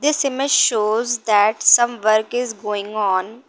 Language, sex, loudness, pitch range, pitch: English, female, -17 LUFS, 210-245 Hz, 225 Hz